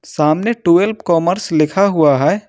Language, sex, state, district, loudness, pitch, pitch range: Hindi, male, Jharkhand, Ranchi, -14 LUFS, 175 Hz, 155-205 Hz